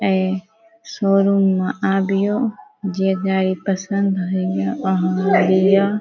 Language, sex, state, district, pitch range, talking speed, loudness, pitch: Maithili, female, Bihar, Saharsa, 190-200 Hz, 100 wpm, -18 LUFS, 195 Hz